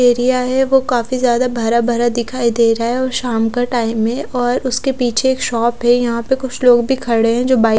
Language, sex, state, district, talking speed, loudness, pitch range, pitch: Hindi, female, Odisha, Khordha, 245 wpm, -15 LUFS, 235-255 Hz, 245 Hz